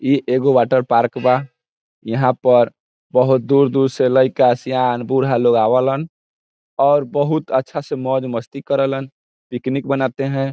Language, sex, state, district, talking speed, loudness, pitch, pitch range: Hindi, male, Bihar, Saran, 150 wpm, -17 LUFS, 130 Hz, 125-135 Hz